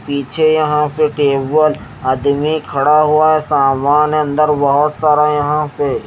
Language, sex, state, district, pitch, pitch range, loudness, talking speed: Hindi, male, Haryana, Jhajjar, 150 Hz, 140-155 Hz, -14 LUFS, 140 wpm